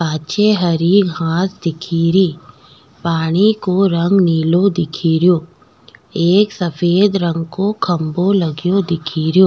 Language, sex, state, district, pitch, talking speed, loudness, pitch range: Rajasthani, female, Rajasthan, Nagaur, 170 Hz, 100 wpm, -15 LUFS, 160-190 Hz